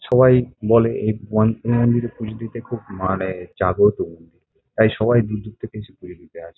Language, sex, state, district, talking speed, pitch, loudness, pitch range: Bengali, male, West Bengal, Kolkata, 165 wpm, 110 Hz, -19 LUFS, 95-115 Hz